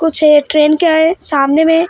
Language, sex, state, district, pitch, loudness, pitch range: Hindi, female, Maharashtra, Mumbai Suburban, 315 Hz, -11 LUFS, 300-325 Hz